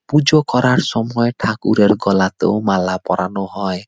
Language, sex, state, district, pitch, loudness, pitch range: Bengali, male, West Bengal, Purulia, 105 Hz, -16 LUFS, 95-120 Hz